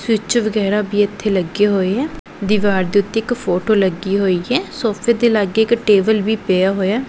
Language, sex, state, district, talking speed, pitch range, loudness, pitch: Punjabi, female, Punjab, Pathankot, 205 wpm, 195-225 Hz, -17 LUFS, 210 Hz